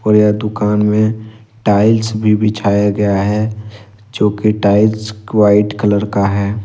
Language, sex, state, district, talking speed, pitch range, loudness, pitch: Hindi, male, Jharkhand, Ranchi, 135 wpm, 105-110 Hz, -14 LUFS, 105 Hz